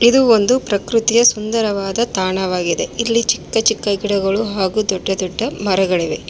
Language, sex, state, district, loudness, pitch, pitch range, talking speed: Kannada, female, Karnataka, Bangalore, -16 LUFS, 210 Hz, 190-230 Hz, 125 wpm